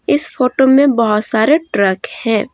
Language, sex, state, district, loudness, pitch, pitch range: Hindi, female, Jharkhand, Deoghar, -13 LUFS, 255 Hz, 215-280 Hz